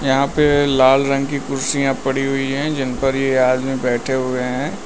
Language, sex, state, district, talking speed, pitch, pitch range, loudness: Hindi, male, Uttar Pradesh, Lalitpur, 200 wpm, 135 Hz, 130-140 Hz, -18 LUFS